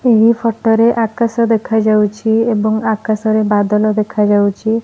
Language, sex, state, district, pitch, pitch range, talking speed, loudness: Odia, female, Odisha, Malkangiri, 220 Hz, 215-230 Hz, 110 wpm, -14 LUFS